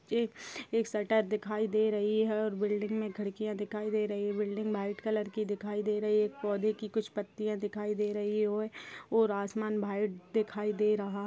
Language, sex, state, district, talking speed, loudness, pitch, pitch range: Hindi, female, Uttar Pradesh, Gorakhpur, 200 wpm, -33 LUFS, 210 Hz, 210-215 Hz